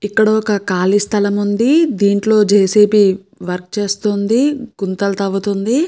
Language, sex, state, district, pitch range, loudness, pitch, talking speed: Telugu, female, Andhra Pradesh, Krishna, 200-220 Hz, -15 LUFS, 205 Hz, 125 wpm